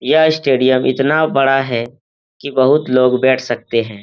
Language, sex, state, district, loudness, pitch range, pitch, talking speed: Hindi, male, Uttar Pradesh, Etah, -14 LUFS, 120-135 Hz, 130 Hz, 165 wpm